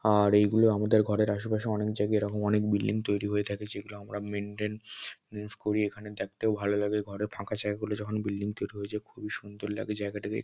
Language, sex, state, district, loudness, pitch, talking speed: Bengali, male, West Bengal, North 24 Parganas, -30 LUFS, 105 Hz, 205 wpm